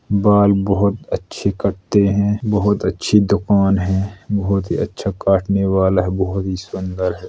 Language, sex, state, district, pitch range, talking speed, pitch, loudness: Bundeli, male, Uttar Pradesh, Jalaun, 95-100 Hz, 155 wpm, 100 Hz, -18 LUFS